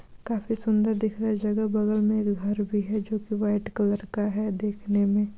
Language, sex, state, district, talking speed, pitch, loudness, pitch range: Hindi, female, Bihar, Darbhanga, 225 wpm, 210 Hz, -26 LUFS, 205-215 Hz